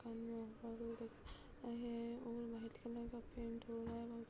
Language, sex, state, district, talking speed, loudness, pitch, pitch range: Hindi, female, Uttar Pradesh, Budaun, 155 wpm, -49 LUFS, 230 Hz, 230-235 Hz